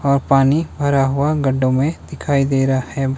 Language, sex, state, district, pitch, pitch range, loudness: Hindi, male, Himachal Pradesh, Shimla, 135 Hz, 135-145 Hz, -17 LUFS